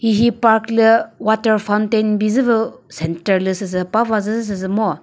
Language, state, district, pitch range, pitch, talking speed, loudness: Chakhesang, Nagaland, Dimapur, 195-225 Hz, 215 Hz, 165 wpm, -17 LUFS